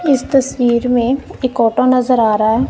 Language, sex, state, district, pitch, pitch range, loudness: Hindi, female, Punjab, Kapurthala, 255 Hz, 235-270 Hz, -14 LUFS